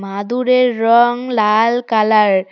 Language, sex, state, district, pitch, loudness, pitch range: Bengali, female, West Bengal, Cooch Behar, 225 Hz, -14 LUFS, 210-245 Hz